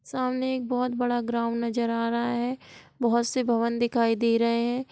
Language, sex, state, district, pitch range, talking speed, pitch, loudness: Hindi, female, Bihar, Gopalganj, 235-250 Hz, 195 wpm, 240 Hz, -26 LUFS